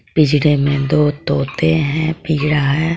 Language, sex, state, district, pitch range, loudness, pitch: Hindi, female, Jharkhand, Garhwa, 145-160 Hz, -16 LUFS, 150 Hz